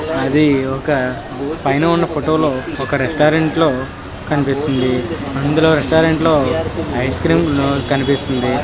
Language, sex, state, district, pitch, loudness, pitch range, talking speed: Telugu, male, Andhra Pradesh, Visakhapatnam, 145 Hz, -16 LUFS, 135-155 Hz, 110 wpm